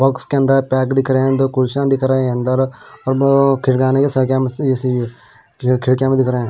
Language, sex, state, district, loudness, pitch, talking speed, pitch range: Hindi, male, Punjab, Pathankot, -16 LUFS, 130 Hz, 230 wpm, 130-135 Hz